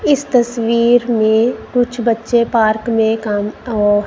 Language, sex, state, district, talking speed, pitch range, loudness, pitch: Hindi, female, Punjab, Kapurthala, 135 wpm, 220-240 Hz, -15 LUFS, 230 Hz